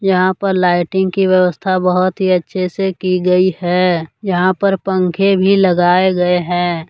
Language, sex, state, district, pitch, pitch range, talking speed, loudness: Hindi, male, Jharkhand, Deoghar, 185 Hz, 180-190 Hz, 165 wpm, -14 LUFS